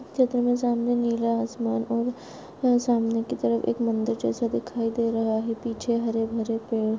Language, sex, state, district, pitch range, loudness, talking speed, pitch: Hindi, female, Rajasthan, Nagaur, 225-240 Hz, -26 LUFS, 170 wpm, 230 Hz